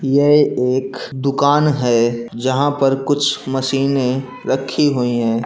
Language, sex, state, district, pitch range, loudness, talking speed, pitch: Hindi, male, Chhattisgarh, Bilaspur, 125-140 Hz, -17 LUFS, 120 wpm, 135 Hz